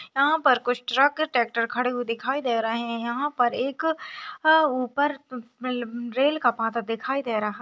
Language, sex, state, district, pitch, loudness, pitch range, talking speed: Hindi, female, Maharashtra, Nagpur, 250 Hz, -24 LUFS, 235-285 Hz, 175 wpm